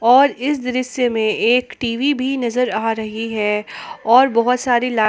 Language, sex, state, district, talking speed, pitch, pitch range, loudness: Hindi, female, Jharkhand, Palamu, 175 wpm, 240 Hz, 225-255 Hz, -17 LUFS